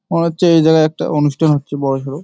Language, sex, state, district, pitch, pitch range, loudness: Bengali, male, West Bengal, Jalpaiguri, 155 Hz, 145-165 Hz, -14 LUFS